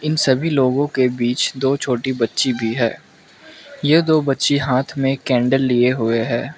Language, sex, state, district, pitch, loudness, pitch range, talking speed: Hindi, male, Mizoram, Aizawl, 130 Hz, -18 LUFS, 125-140 Hz, 165 wpm